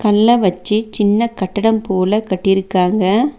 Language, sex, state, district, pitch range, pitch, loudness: Tamil, female, Tamil Nadu, Nilgiris, 190-220 Hz, 205 Hz, -15 LUFS